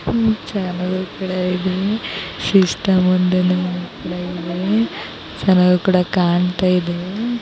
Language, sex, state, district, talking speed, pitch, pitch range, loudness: Kannada, female, Karnataka, Bijapur, 80 wpm, 185 Hz, 180-190 Hz, -18 LUFS